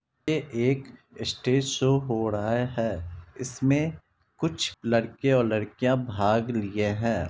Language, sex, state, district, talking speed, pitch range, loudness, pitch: Hindi, male, Bihar, Kishanganj, 125 wpm, 110-130 Hz, -27 LUFS, 115 Hz